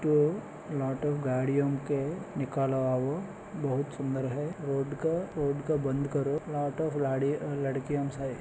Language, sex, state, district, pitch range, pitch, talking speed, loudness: Hindi, male, Maharashtra, Solapur, 135-150 Hz, 140 Hz, 145 wpm, -31 LUFS